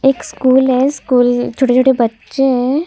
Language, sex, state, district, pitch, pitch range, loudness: Hindi, female, Chhattisgarh, Kabirdham, 260 Hz, 245-270 Hz, -13 LUFS